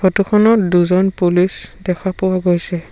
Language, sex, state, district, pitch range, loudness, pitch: Assamese, male, Assam, Sonitpur, 180-195 Hz, -15 LUFS, 185 Hz